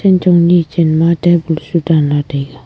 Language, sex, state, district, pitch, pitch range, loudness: Wancho, female, Arunachal Pradesh, Longding, 165 Hz, 150-175 Hz, -12 LUFS